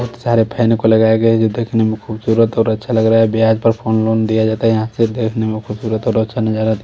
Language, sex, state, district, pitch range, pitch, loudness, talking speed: Hindi, male, Haryana, Rohtak, 110-115 Hz, 110 Hz, -15 LUFS, 290 wpm